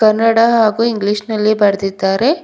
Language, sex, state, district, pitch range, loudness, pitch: Kannada, female, Karnataka, Bidar, 205-230 Hz, -14 LUFS, 215 Hz